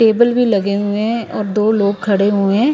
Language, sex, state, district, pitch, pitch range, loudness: Hindi, female, Punjab, Kapurthala, 210 Hz, 200-230 Hz, -15 LUFS